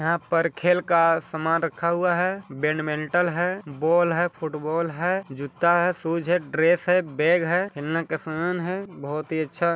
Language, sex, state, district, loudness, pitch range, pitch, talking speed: Hindi, male, Chhattisgarh, Balrampur, -24 LUFS, 155-175 Hz, 170 Hz, 155 wpm